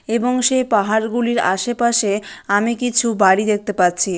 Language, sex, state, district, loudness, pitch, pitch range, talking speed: Bengali, female, West Bengal, Malda, -17 LUFS, 220 Hz, 200-240 Hz, 160 wpm